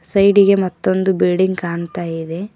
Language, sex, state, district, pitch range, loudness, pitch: Kannada, female, Karnataka, Koppal, 170-195 Hz, -16 LUFS, 185 Hz